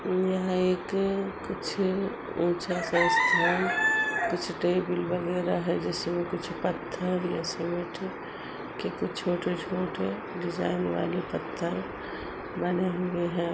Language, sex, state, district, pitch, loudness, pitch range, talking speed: Hindi, female, Uttar Pradesh, Budaun, 180 Hz, -29 LUFS, 175-185 Hz, 95 wpm